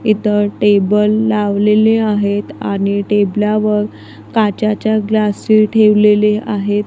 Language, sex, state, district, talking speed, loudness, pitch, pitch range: Marathi, female, Maharashtra, Gondia, 95 wpm, -13 LUFS, 210 Hz, 205-215 Hz